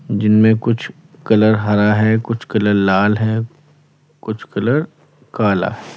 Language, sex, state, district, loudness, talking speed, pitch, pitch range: Hindi, male, Uttar Pradesh, Lalitpur, -16 LUFS, 120 wpm, 110 Hz, 105-120 Hz